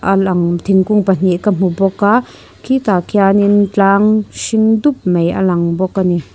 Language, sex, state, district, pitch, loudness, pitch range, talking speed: Mizo, female, Mizoram, Aizawl, 195 Hz, -13 LUFS, 185-205 Hz, 180 wpm